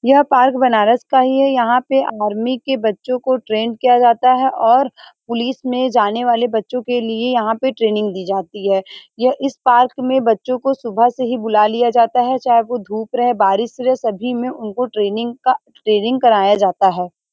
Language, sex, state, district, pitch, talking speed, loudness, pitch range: Hindi, female, Uttar Pradesh, Varanasi, 245 Hz, 200 wpm, -16 LUFS, 220-255 Hz